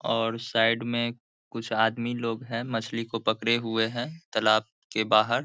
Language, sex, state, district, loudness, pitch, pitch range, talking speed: Hindi, male, Bihar, Saharsa, -27 LUFS, 115 Hz, 110-120 Hz, 165 wpm